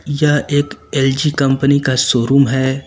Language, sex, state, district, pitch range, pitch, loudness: Hindi, male, Uttar Pradesh, Lucknow, 135-145 Hz, 140 Hz, -14 LUFS